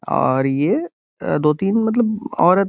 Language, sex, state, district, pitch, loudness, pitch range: Hindi, male, Uttar Pradesh, Gorakhpur, 195 Hz, -18 LUFS, 150-225 Hz